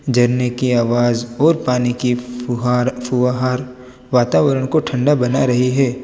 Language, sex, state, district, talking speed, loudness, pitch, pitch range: Hindi, male, Gujarat, Valsad, 140 wpm, -17 LUFS, 125 Hz, 125-130 Hz